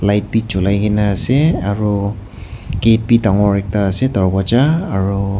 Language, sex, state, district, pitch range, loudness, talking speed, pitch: Nagamese, male, Nagaland, Kohima, 100-115 Hz, -15 LUFS, 135 wpm, 100 Hz